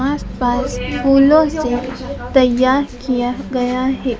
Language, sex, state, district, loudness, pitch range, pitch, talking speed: Hindi, female, Madhya Pradesh, Dhar, -16 LUFS, 250-275 Hz, 255 Hz, 115 wpm